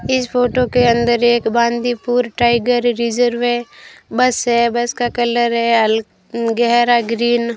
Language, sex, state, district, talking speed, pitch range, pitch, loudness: Hindi, female, Rajasthan, Bikaner, 150 wpm, 235-245 Hz, 240 Hz, -16 LUFS